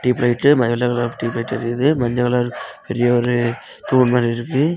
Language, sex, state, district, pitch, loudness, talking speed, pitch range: Tamil, male, Tamil Nadu, Kanyakumari, 120 Hz, -18 LUFS, 150 wpm, 120-125 Hz